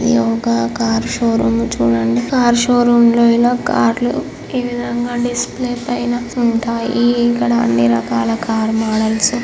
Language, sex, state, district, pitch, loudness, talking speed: Telugu, female, Andhra Pradesh, Chittoor, 230 Hz, -15 LUFS, 150 wpm